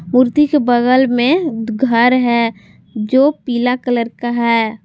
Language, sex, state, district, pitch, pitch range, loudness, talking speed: Hindi, female, Jharkhand, Garhwa, 245 Hz, 230-255 Hz, -14 LUFS, 135 wpm